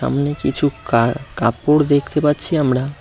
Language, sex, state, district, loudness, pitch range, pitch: Bengali, male, West Bengal, Cooch Behar, -18 LUFS, 130-150 Hz, 145 Hz